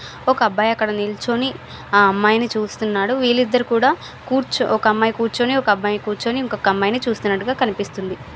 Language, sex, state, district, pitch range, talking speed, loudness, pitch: Telugu, female, Andhra Pradesh, Visakhapatnam, 205-245 Hz, 135 wpm, -19 LUFS, 220 Hz